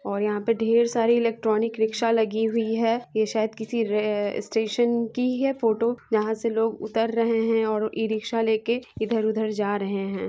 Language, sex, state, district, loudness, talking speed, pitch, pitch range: Hindi, female, Bihar, Muzaffarpur, -24 LUFS, 180 wpm, 225 Hz, 215-230 Hz